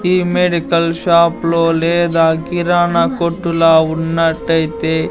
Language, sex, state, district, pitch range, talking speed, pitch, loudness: Telugu, male, Andhra Pradesh, Sri Satya Sai, 165-170 Hz, 95 wpm, 165 Hz, -14 LUFS